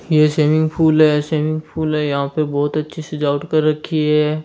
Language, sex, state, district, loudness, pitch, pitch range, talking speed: Hindi, male, Rajasthan, Churu, -17 LUFS, 155 Hz, 150-155 Hz, 215 wpm